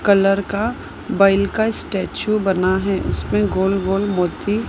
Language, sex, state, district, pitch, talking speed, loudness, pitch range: Hindi, female, Maharashtra, Mumbai Suburban, 195 Hz, 140 wpm, -19 LUFS, 185-200 Hz